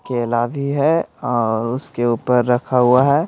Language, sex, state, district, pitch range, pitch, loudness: Hindi, male, Odisha, Malkangiri, 120-140 Hz, 125 Hz, -18 LUFS